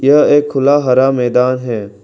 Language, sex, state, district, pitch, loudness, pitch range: Hindi, male, Arunachal Pradesh, Lower Dibang Valley, 130 Hz, -12 LUFS, 125-140 Hz